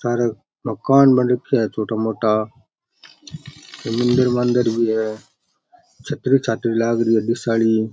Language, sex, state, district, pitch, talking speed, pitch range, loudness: Rajasthani, male, Rajasthan, Churu, 115 Hz, 145 wpm, 110-125 Hz, -19 LUFS